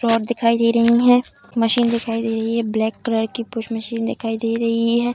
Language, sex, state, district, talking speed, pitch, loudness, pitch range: Hindi, female, Bihar, Darbhanga, 220 wpm, 230 Hz, -19 LUFS, 225-235 Hz